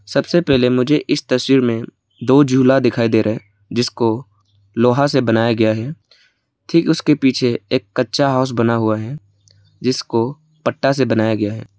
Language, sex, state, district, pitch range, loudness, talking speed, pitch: Hindi, male, Arunachal Pradesh, Lower Dibang Valley, 110-135 Hz, -17 LUFS, 170 wpm, 120 Hz